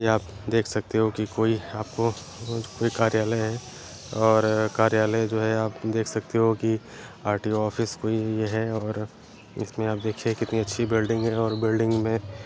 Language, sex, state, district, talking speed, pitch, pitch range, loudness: Kumaoni, male, Uttarakhand, Uttarkashi, 175 wpm, 110 Hz, 110-115 Hz, -25 LUFS